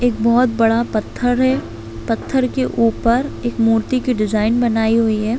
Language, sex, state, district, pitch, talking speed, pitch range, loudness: Hindi, female, Chhattisgarh, Bastar, 230 Hz, 165 wpm, 225-245 Hz, -17 LUFS